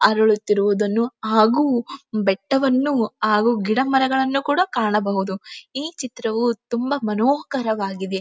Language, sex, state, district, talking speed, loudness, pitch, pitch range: Kannada, female, Karnataka, Dharwad, 80 wpm, -20 LUFS, 230 Hz, 210-265 Hz